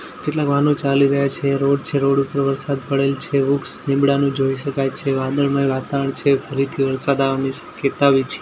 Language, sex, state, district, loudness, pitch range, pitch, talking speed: Gujarati, male, Gujarat, Gandhinagar, -19 LUFS, 135-140 Hz, 140 Hz, 170 wpm